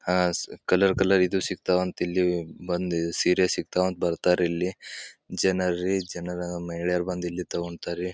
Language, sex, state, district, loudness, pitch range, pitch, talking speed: Kannada, male, Karnataka, Bijapur, -26 LUFS, 85-90 Hz, 90 Hz, 140 wpm